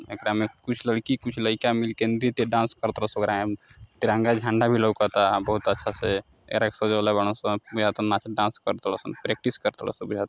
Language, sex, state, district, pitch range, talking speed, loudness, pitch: Maithili, male, Bihar, Samastipur, 105-115 Hz, 205 wpm, -25 LUFS, 110 Hz